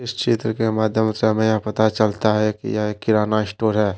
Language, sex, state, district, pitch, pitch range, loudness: Hindi, male, Jharkhand, Deoghar, 110 Hz, 105-110 Hz, -20 LUFS